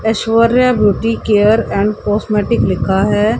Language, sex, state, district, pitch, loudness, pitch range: Hindi, female, Haryana, Jhajjar, 215 Hz, -13 LUFS, 210-225 Hz